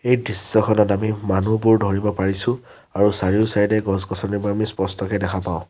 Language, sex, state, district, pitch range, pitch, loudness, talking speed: Assamese, male, Assam, Sonitpur, 95-110 Hz, 105 Hz, -20 LUFS, 135 wpm